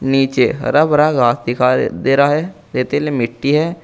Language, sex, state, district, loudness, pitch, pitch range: Hindi, male, Uttar Pradesh, Saharanpur, -15 LUFS, 140 Hz, 130-150 Hz